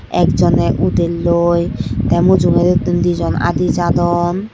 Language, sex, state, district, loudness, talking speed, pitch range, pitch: Chakma, male, Tripura, Dhalai, -14 LUFS, 120 wpm, 170-175 Hz, 170 Hz